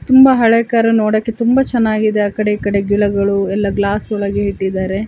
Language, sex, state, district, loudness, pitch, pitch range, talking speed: Kannada, female, Karnataka, Chamarajanagar, -14 LUFS, 210 Hz, 200-230 Hz, 155 wpm